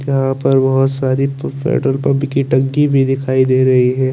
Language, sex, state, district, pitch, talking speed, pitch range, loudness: Hindi, male, Chandigarh, Chandigarh, 135 Hz, 205 wpm, 130-135 Hz, -14 LUFS